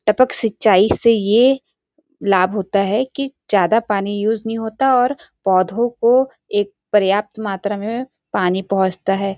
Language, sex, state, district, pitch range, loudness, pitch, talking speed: Hindi, female, Chhattisgarh, Sarguja, 195-245 Hz, -17 LUFS, 215 Hz, 145 wpm